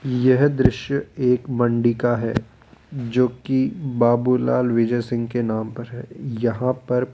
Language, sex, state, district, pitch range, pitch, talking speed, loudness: Hindi, male, Rajasthan, Jaipur, 120-130 Hz, 120 Hz, 145 wpm, -21 LUFS